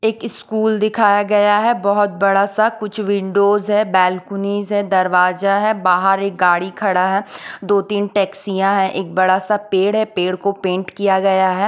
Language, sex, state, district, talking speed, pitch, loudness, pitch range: Hindi, female, Odisha, Khordha, 180 wpm, 200 Hz, -16 LUFS, 190-205 Hz